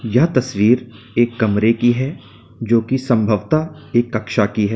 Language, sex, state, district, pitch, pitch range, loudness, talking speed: Hindi, male, Uttar Pradesh, Lalitpur, 115 Hz, 110-130 Hz, -17 LUFS, 165 wpm